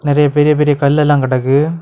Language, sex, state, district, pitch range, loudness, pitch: Tamil, male, Tamil Nadu, Kanyakumari, 140-150 Hz, -12 LUFS, 145 Hz